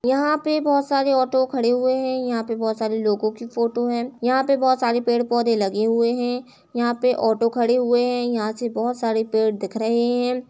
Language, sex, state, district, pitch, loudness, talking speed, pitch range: Hindi, female, Uttar Pradesh, Etah, 240 Hz, -21 LUFS, 215 wpm, 230-255 Hz